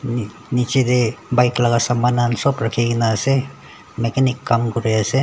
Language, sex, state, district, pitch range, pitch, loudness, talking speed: Nagamese, male, Nagaland, Dimapur, 115-125 Hz, 120 Hz, -18 LUFS, 160 wpm